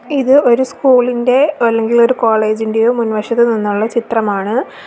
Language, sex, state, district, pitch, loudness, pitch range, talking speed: Malayalam, female, Kerala, Kollam, 235 Hz, -13 LUFS, 220-250 Hz, 135 wpm